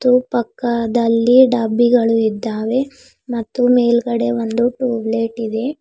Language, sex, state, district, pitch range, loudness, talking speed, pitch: Kannada, female, Karnataka, Bidar, 225-245 Hz, -16 LUFS, 105 wpm, 235 Hz